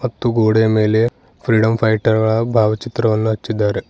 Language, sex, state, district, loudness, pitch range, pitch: Kannada, male, Karnataka, Bidar, -16 LUFS, 110-115 Hz, 110 Hz